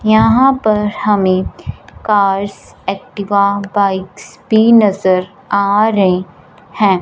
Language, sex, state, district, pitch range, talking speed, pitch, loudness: Hindi, female, Punjab, Fazilka, 195-215 Hz, 95 wpm, 200 Hz, -13 LUFS